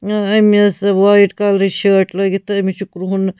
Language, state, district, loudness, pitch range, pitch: Kashmiri, Punjab, Kapurthala, -14 LUFS, 195-205 Hz, 200 Hz